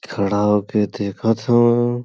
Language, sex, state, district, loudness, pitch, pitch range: Bhojpuri, male, Uttar Pradesh, Gorakhpur, -18 LUFS, 105 Hz, 100-120 Hz